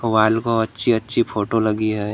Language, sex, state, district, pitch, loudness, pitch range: Hindi, male, Maharashtra, Gondia, 110 Hz, -19 LUFS, 110-115 Hz